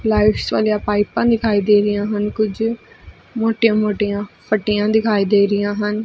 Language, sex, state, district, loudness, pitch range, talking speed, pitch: Punjabi, female, Punjab, Fazilka, -17 LUFS, 205-220 Hz, 150 wpm, 210 Hz